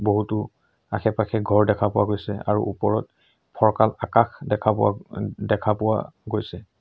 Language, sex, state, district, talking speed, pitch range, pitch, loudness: Assamese, male, Assam, Sonitpur, 140 wpm, 105-110 Hz, 105 Hz, -23 LUFS